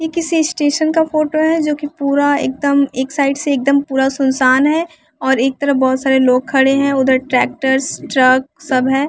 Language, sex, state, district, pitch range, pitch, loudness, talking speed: Hindi, female, Bihar, West Champaran, 265-300 Hz, 280 Hz, -15 LUFS, 200 wpm